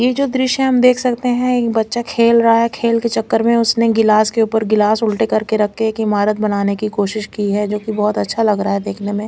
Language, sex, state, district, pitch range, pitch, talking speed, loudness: Hindi, female, Chandigarh, Chandigarh, 210-235 Hz, 220 Hz, 265 wpm, -15 LUFS